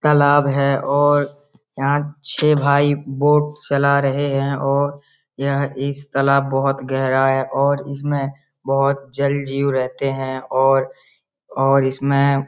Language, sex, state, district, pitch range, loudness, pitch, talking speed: Hindi, male, Bihar, Darbhanga, 135-145 Hz, -18 LUFS, 140 Hz, 130 wpm